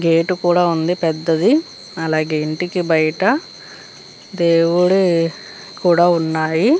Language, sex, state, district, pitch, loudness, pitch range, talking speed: Telugu, female, Andhra Pradesh, Chittoor, 170 Hz, -17 LUFS, 160-180 Hz, 95 wpm